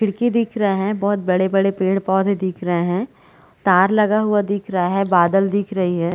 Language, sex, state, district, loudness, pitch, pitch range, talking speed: Hindi, female, Chhattisgarh, Bilaspur, -18 LUFS, 195 Hz, 185-205 Hz, 195 wpm